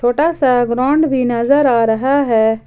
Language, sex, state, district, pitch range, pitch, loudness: Hindi, female, Jharkhand, Ranchi, 235-280 Hz, 250 Hz, -14 LUFS